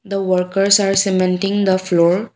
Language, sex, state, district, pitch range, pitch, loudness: English, female, Assam, Kamrup Metropolitan, 185-195 Hz, 195 Hz, -16 LUFS